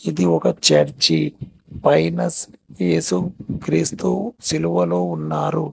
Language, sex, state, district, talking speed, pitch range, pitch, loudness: Telugu, male, Telangana, Hyderabad, 75 wpm, 80-90 Hz, 85 Hz, -19 LUFS